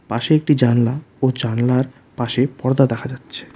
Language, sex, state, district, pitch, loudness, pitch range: Bengali, male, West Bengal, Alipurduar, 130 Hz, -19 LUFS, 120-135 Hz